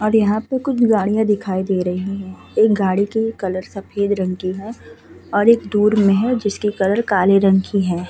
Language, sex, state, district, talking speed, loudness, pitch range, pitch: Hindi, female, Uttar Pradesh, Muzaffarnagar, 205 wpm, -18 LUFS, 190-220 Hz, 200 Hz